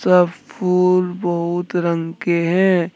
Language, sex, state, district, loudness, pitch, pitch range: Hindi, male, Jharkhand, Deoghar, -18 LUFS, 175 Hz, 170-180 Hz